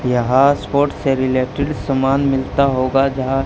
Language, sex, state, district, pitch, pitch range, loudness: Hindi, male, Haryana, Charkhi Dadri, 135 Hz, 130-140 Hz, -17 LUFS